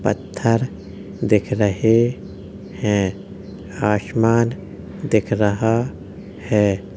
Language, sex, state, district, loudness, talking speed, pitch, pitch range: Hindi, male, Uttar Pradesh, Jalaun, -19 LUFS, 70 wpm, 105 Hz, 100-115 Hz